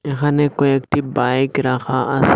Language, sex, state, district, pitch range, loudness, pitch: Bengali, male, Assam, Hailakandi, 130-145 Hz, -18 LUFS, 135 Hz